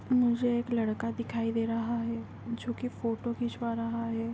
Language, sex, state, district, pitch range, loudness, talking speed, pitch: Hindi, female, Andhra Pradesh, Anantapur, 230-240 Hz, -32 LUFS, 165 wpm, 230 Hz